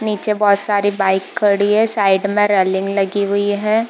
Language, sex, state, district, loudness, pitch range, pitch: Hindi, female, Bihar, Purnia, -16 LUFS, 200-210 Hz, 205 Hz